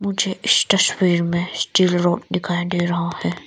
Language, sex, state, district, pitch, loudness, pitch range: Hindi, female, Arunachal Pradesh, Lower Dibang Valley, 180 Hz, -19 LUFS, 175-190 Hz